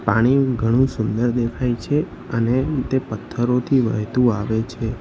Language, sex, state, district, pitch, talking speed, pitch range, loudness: Gujarati, male, Gujarat, Valsad, 120 Hz, 130 wpm, 115-130 Hz, -20 LUFS